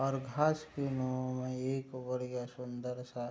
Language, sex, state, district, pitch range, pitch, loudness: Hindi, male, Bihar, Sitamarhi, 125-135 Hz, 130 Hz, -37 LUFS